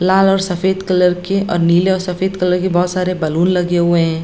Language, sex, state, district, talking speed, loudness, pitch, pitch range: Hindi, female, Bihar, Jamui, 240 wpm, -15 LUFS, 180 Hz, 175-190 Hz